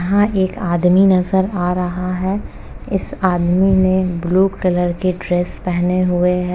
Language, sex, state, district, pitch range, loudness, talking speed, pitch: Hindi, female, Uttar Pradesh, Jalaun, 180-190 Hz, -17 LUFS, 155 wpm, 180 Hz